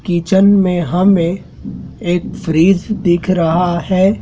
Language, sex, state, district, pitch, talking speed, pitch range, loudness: Hindi, male, Madhya Pradesh, Dhar, 180 Hz, 115 wpm, 175-190 Hz, -14 LUFS